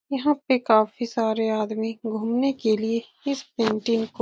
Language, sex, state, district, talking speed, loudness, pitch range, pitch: Hindi, female, Bihar, Saran, 170 wpm, -24 LUFS, 220-260 Hz, 225 Hz